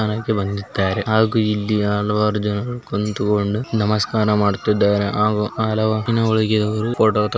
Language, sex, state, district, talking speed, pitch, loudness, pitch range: Kannada, male, Karnataka, Belgaum, 115 wpm, 105 Hz, -19 LUFS, 105-110 Hz